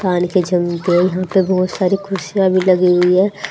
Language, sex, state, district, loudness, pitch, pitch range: Hindi, female, Haryana, Rohtak, -15 LUFS, 185 Hz, 180-190 Hz